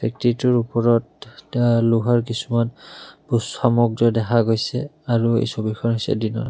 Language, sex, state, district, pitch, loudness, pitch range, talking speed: Assamese, male, Assam, Kamrup Metropolitan, 115 Hz, -20 LUFS, 115-120 Hz, 100 wpm